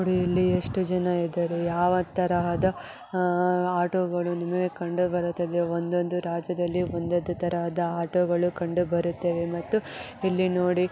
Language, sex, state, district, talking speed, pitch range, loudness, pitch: Kannada, female, Karnataka, Bellary, 110 wpm, 175-180 Hz, -26 LUFS, 175 Hz